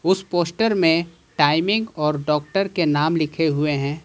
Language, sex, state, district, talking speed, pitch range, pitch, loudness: Hindi, male, Jharkhand, Ranchi, 165 wpm, 150-185 Hz, 160 Hz, -20 LUFS